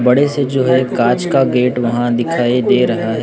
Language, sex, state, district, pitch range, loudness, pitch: Hindi, male, Maharashtra, Gondia, 120-130 Hz, -14 LUFS, 125 Hz